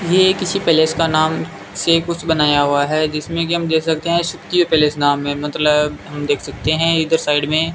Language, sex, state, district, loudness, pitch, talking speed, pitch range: Hindi, male, Rajasthan, Bikaner, -17 LUFS, 160 Hz, 210 wpm, 150-165 Hz